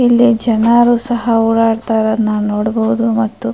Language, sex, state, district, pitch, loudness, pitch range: Kannada, female, Karnataka, Mysore, 225 Hz, -13 LUFS, 220-235 Hz